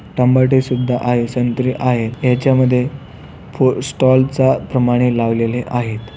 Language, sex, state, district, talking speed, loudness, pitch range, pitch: Marathi, male, Maharashtra, Pune, 105 wpm, -16 LUFS, 120-130 Hz, 125 Hz